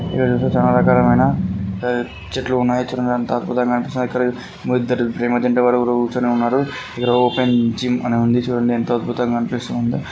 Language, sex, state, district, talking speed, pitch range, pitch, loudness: Telugu, male, Andhra Pradesh, Srikakulam, 125 wpm, 120-125 Hz, 120 Hz, -18 LUFS